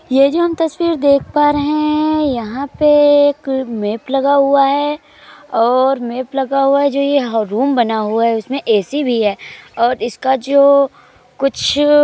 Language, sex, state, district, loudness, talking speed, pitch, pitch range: Hindi, male, Uttar Pradesh, Jyotiba Phule Nagar, -14 LUFS, 175 wpm, 275 Hz, 245-290 Hz